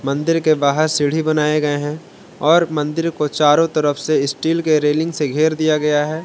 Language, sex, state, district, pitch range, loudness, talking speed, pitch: Hindi, male, Jharkhand, Palamu, 150-160 Hz, -17 LUFS, 200 wpm, 150 Hz